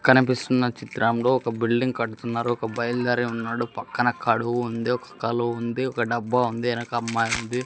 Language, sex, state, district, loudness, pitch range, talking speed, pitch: Telugu, male, Andhra Pradesh, Sri Satya Sai, -24 LUFS, 115-125 Hz, 140 wpm, 120 Hz